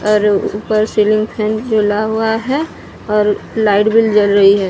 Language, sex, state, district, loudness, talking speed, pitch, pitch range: Hindi, female, Odisha, Sambalpur, -14 LUFS, 165 wpm, 215 Hz, 210-220 Hz